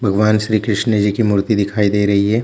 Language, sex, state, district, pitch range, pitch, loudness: Hindi, male, Chhattisgarh, Bilaspur, 100-110 Hz, 105 Hz, -16 LUFS